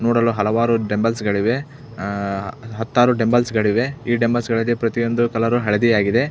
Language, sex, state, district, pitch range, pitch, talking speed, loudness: Kannada, male, Karnataka, Belgaum, 110-120 Hz, 115 Hz, 150 wpm, -19 LUFS